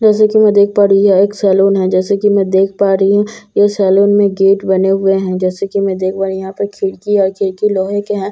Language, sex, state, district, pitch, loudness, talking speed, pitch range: Hindi, female, Bihar, Katihar, 195 Hz, -12 LUFS, 290 wpm, 190-205 Hz